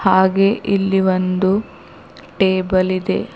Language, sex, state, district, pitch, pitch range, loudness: Kannada, female, Karnataka, Bidar, 190 Hz, 185-195 Hz, -17 LUFS